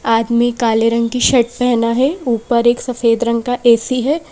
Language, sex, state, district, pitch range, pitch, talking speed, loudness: Hindi, female, Madhya Pradesh, Bhopal, 230-250 Hz, 235 Hz, 195 wpm, -15 LUFS